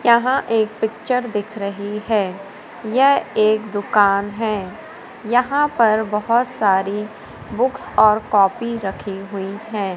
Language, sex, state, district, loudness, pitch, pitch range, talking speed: Hindi, female, Madhya Pradesh, Umaria, -19 LUFS, 215 Hz, 205-235 Hz, 120 wpm